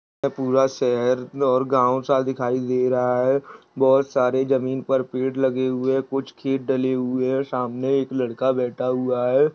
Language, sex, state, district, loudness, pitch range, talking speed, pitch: Hindi, male, Maharashtra, Solapur, -22 LUFS, 125-135 Hz, 190 wpm, 130 Hz